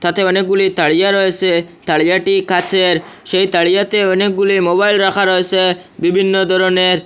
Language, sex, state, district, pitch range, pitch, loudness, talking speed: Bengali, male, Assam, Hailakandi, 180-195 Hz, 185 Hz, -13 LUFS, 120 wpm